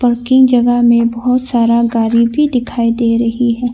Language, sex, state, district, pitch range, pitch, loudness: Hindi, female, Arunachal Pradesh, Longding, 235-245 Hz, 240 Hz, -12 LUFS